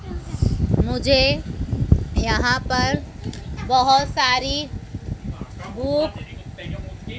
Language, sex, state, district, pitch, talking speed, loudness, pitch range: Hindi, female, Madhya Pradesh, Dhar, 270 Hz, 60 wpm, -20 LUFS, 255-275 Hz